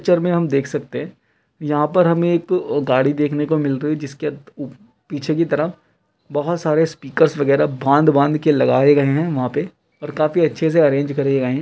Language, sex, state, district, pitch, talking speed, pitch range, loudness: Hindi, male, Bihar, Jamui, 150 Hz, 195 wpm, 140-160 Hz, -18 LUFS